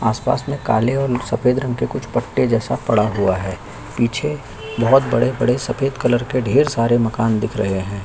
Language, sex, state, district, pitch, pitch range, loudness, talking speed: Hindi, male, Chhattisgarh, Kabirdham, 120 Hz, 110-130 Hz, -19 LUFS, 185 wpm